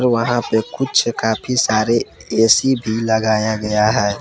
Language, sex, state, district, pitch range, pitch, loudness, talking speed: Hindi, male, Jharkhand, Palamu, 110-120 Hz, 110 Hz, -17 LUFS, 140 wpm